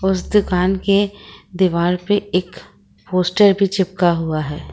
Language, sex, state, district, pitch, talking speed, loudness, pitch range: Hindi, female, Jharkhand, Ranchi, 185 Hz, 140 wpm, -17 LUFS, 170-195 Hz